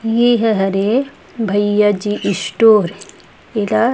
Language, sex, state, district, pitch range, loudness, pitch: Chhattisgarhi, female, Chhattisgarh, Rajnandgaon, 200-225 Hz, -15 LUFS, 210 Hz